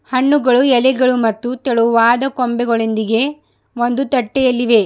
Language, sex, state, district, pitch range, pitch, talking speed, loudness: Kannada, female, Karnataka, Bidar, 230-260 Hz, 245 Hz, 85 wpm, -15 LUFS